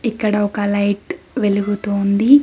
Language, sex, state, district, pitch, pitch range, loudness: Telugu, female, Telangana, Mahabubabad, 205 Hz, 200-215 Hz, -18 LUFS